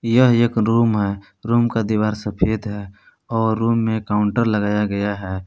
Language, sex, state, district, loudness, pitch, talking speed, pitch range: Hindi, male, Jharkhand, Palamu, -19 LUFS, 110 Hz, 175 wpm, 105-115 Hz